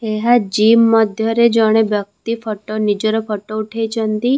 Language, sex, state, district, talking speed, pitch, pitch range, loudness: Odia, female, Odisha, Khordha, 135 wpm, 220 Hz, 215-225 Hz, -16 LUFS